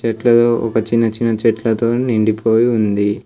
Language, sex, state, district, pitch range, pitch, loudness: Telugu, male, Telangana, Komaram Bheem, 110-115 Hz, 115 Hz, -15 LUFS